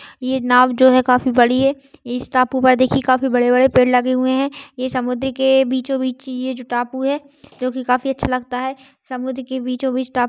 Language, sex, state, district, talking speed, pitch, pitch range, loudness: Hindi, female, Maharashtra, Sindhudurg, 220 wpm, 255 Hz, 250-265 Hz, -17 LUFS